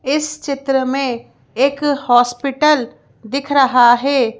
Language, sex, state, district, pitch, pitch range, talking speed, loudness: Hindi, female, Madhya Pradesh, Bhopal, 270 Hz, 245-280 Hz, 110 wpm, -15 LUFS